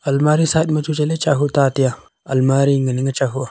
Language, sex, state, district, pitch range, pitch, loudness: Wancho, male, Arunachal Pradesh, Longding, 135-150 Hz, 140 Hz, -17 LUFS